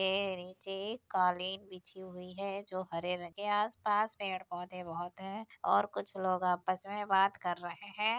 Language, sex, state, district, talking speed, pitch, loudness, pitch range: Hindi, female, Uttar Pradesh, Deoria, 190 wpm, 190 Hz, -35 LUFS, 180-200 Hz